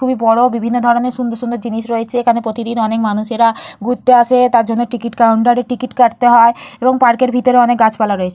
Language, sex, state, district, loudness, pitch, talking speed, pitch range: Bengali, female, West Bengal, Purulia, -13 LUFS, 235 Hz, 210 wpm, 230-245 Hz